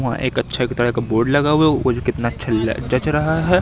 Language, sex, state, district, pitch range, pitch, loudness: Hindi, male, Madhya Pradesh, Katni, 120-150 Hz, 125 Hz, -18 LUFS